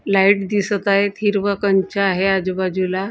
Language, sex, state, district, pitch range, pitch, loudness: Marathi, female, Maharashtra, Gondia, 195-200 Hz, 195 Hz, -18 LUFS